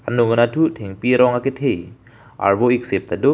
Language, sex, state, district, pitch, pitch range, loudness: Karbi, male, Assam, Karbi Anglong, 120 Hz, 100-125 Hz, -18 LUFS